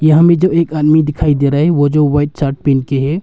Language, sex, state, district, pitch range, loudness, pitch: Hindi, male, Arunachal Pradesh, Longding, 145-160 Hz, -12 LUFS, 150 Hz